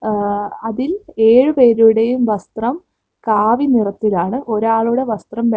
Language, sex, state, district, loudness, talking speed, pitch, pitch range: Malayalam, female, Kerala, Kozhikode, -15 LUFS, 85 wpm, 225 Hz, 215-245 Hz